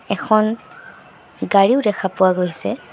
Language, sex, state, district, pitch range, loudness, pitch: Assamese, male, Assam, Sonitpur, 190-215 Hz, -17 LUFS, 205 Hz